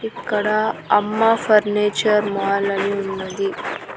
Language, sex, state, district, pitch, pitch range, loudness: Telugu, female, Andhra Pradesh, Annamaya, 210 Hz, 200-215 Hz, -19 LUFS